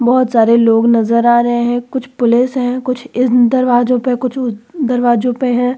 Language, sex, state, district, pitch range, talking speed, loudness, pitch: Hindi, female, Uttar Pradesh, Muzaffarnagar, 240-255 Hz, 185 wpm, -13 LUFS, 245 Hz